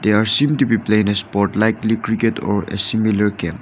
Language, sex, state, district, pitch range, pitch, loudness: English, male, Nagaland, Dimapur, 100-110 Hz, 105 Hz, -17 LUFS